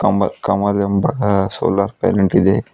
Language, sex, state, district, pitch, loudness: Kannada, female, Karnataka, Bidar, 100 Hz, -17 LUFS